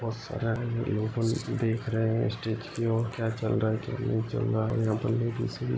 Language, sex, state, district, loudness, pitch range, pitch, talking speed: Marathi, male, Maharashtra, Sindhudurg, -29 LUFS, 110-115 Hz, 115 Hz, 220 wpm